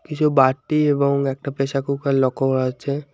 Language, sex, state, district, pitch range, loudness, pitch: Bengali, male, West Bengal, Alipurduar, 135-145 Hz, -20 LUFS, 140 Hz